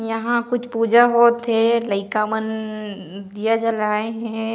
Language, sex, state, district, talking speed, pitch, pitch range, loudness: Chhattisgarhi, female, Chhattisgarh, Raigarh, 145 wpm, 225 Hz, 215-230 Hz, -19 LUFS